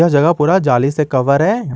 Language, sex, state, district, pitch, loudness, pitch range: Hindi, male, Jharkhand, Garhwa, 145 Hz, -14 LUFS, 135-155 Hz